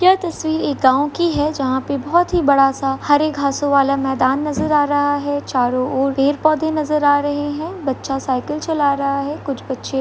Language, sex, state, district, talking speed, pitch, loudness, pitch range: Hindi, female, Jharkhand, Sahebganj, 210 wpm, 285 Hz, -18 LUFS, 270-300 Hz